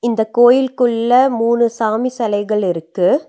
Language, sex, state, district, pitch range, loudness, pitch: Tamil, female, Tamil Nadu, Nilgiris, 220-245 Hz, -15 LUFS, 235 Hz